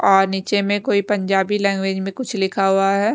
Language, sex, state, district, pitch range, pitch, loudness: Hindi, female, Punjab, Kapurthala, 195-205 Hz, 195 Hz, -19 LUFS